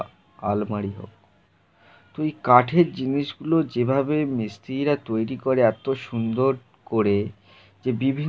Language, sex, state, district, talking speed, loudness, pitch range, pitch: Bengali, male, West Bengal, Jhargram, 125 wpm, -23 LUFS, 105-135 Hz, 120 Hz